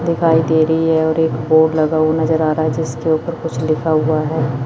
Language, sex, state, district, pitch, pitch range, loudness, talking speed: Hindi, female, Chandigarh, Chandigarh, 160 Hz, 155-160 Hz, -16 LUFS, 245 wpm